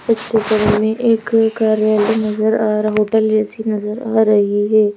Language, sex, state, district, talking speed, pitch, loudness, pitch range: Hindi, female, Madhya Pradesh, Bhopal, 170 wpm, 215 Hz, -15 LUFS, 215-220 Hz